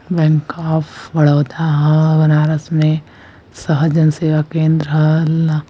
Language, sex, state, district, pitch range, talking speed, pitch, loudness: Hindi, male, Uttar Pradesh, Varanasi, 150-160 Hz, 30 wpm, 155 Hz, -15 LUFS